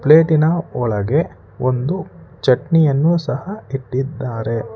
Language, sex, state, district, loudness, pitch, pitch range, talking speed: Kannada, male, Karnataka, Bangalore, -18 LUFS, 140 Hz, 125-160 Hz, 75 wpm